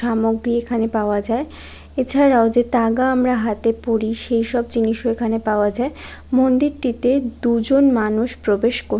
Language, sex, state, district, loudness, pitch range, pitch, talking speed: Bengali, female, West Bengal, Kolkata, -18 LUFS, 225-250 Hz, 235 Hz, 140 wpm